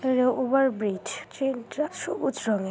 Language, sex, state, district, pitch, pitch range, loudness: Bengali, female, West Bengal, Malda, 255 Hz, 215-270 Hz, -27 LUFS